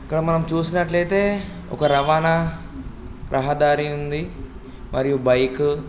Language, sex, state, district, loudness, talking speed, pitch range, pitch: Telugu, male, Andhra Pradesh, Guntur, -21 LUFS, 100 wpm, 140-165 Hz, 150 Hz